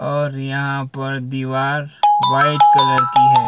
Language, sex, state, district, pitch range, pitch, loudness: Hindi, male, Himachal Pradesh, Shimla, 135-165 Hz, 145 Hz, -16 LUFS